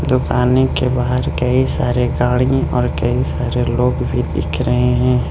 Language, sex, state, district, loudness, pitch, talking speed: Hindi, male, Arunachal Pradesh, Lower Dibang Valley, -16 LUFS, 100 Hz, 160 wpm